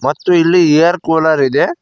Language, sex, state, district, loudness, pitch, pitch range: Kannada, male, Karnataka, Koppal, -12 LUFS, 165 Hz, 160-175 Hz